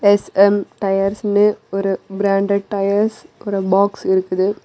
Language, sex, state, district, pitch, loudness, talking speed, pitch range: Tamil, female, Tamil Nadu, Kanyakumari, 200 Hz, -17 LUFS, 105 wpm, 195-205 Hz